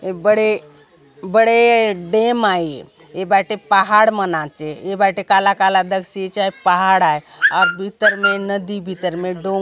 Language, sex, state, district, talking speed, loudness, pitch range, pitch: Halbi, female, Chhattisgarh, Bastar, 170 wpm, -16 LUFS, 185-205 Hz, 195 Hz